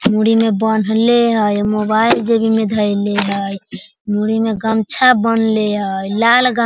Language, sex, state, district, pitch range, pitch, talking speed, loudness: Hindi, female, Bihar, Sitamarhi, 210-225 Hz, 220 Hz, 155 wpm, -15 LUFS